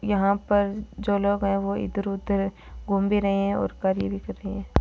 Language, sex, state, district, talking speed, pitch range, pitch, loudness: Marwari, female, Rajasthan, Churu, 210 wpm, 195-205 Hz, 200 Hz, -25 LUFS